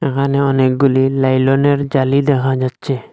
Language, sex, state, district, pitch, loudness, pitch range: Bengali, male, Assam, Hailakandi, 135 Hz, -15 LUFS, 130-140 Hz